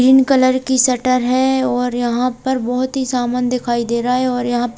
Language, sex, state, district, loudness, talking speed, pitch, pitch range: Hindi, female, Bihar, Katihar, -16 LUFS, 225 wpm, 250 Hz, 245-260 Hz